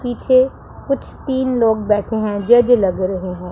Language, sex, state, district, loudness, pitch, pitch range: Hindi, female, Punjab, Pathankot, -17 LUFS, 225 Hz, 200-255 Hz